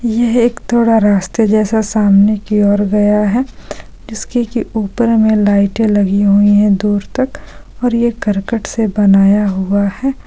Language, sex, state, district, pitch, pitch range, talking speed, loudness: Hindi, female, Bihar, Supaul, 215 Hz, 205-235 Hz, 160 wpm, -13 LUFS